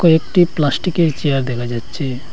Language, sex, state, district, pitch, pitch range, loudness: Bengali, male, Assam, Hailakandi, 145 Hz, 130-170 Hz, -17 LUFS